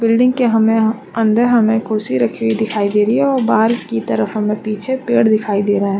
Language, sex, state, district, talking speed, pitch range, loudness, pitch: Hindi, female, Chhattisgarh, Bastar, 230 wpm, 200-230 Hz, -15 LUFS, 215 Hz